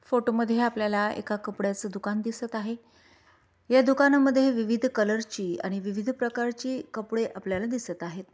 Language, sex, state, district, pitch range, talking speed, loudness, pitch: Marathi, female, Maharashtra, Dhule, 205-240 Hz, 150 wpm, -27 LUFS, 225 Hz